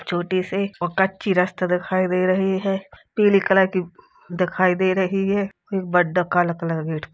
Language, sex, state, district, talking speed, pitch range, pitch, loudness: Hindi, female, Uttar Pradesh, Jalaun, 185 wpm, 180-195 Hz, 185 Hz, -21 LUFS